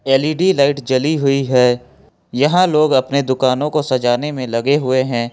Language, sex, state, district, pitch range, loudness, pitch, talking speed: Hindi, male, Jharkhand, Ranchi, 130-150 Hz, -16 LUFS, 135 Hz, 170 wpm